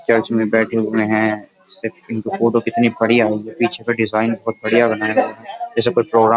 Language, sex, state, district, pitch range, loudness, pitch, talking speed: Hindi, male, Uttar Pradesh, Jyotiba Phule Nagar, 110-115 Hz, -17 LUFS, 115 Hz, 190 wpm